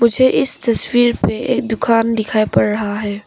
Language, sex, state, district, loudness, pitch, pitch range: Hindi, female, Arunachal Pradesh, Papum Pare, -15 LUFS, 230 Hz, 215-245 Hz